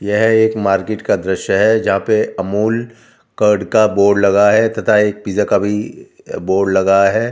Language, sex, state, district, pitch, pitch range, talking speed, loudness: Hindi, male, Delhi, New Delhi, 105 Hz, 100-110 Hz, 180 wpm, -14 LUFS